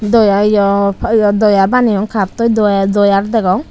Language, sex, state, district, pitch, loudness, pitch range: Chakma, female, Tripura, Unakoti, 205 Hz, -12 LUFS, 200-220 Hz